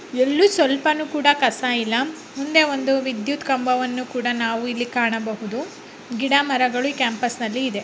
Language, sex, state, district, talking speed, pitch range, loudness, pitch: Kannada, female, Karnataka, Raichur, 130 wpm, 245-285 Hz, -21 LUFS, 255 Hz